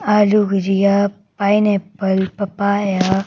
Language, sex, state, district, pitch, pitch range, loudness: Hindi, female, Madhya Pradesh, Bhopal, 200 Hz, 195-205 Hz, -17 LUFS